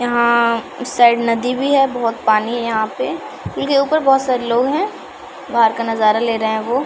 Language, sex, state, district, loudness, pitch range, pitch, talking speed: Maithili, female, Bihar, Samastipur, -16 LUFS, 230-265 Hz, 235 Hz, 220 wpm